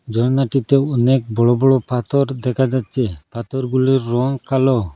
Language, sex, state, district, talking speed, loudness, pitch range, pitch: Bengali, male, Assam, Hailakandi, 120 wpm, -17 LUFS, 120-135 Hz, 130 Hz